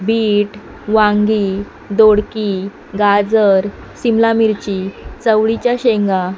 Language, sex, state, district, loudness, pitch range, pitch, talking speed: Marathi, male, Maharashtra, Mumbai Suburban, -15 LUFS, 200-220 Hz, 210 Hz, 85 wpm